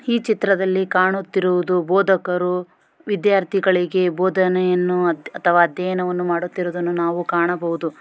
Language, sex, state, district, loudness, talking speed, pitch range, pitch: Kannada, female, Karnataka, Shimoga, -19 LUFS, 80 wpm, 175-190 Hz, 180 Hz